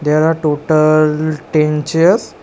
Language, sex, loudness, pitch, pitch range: English, male, -13 LUFS, 155 Hz, 150-160 Hz